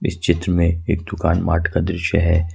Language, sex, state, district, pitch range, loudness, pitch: Hindi, male, Jharkhand, Ranchi, 85-90 Hz, -19 LUFS, 85 Hz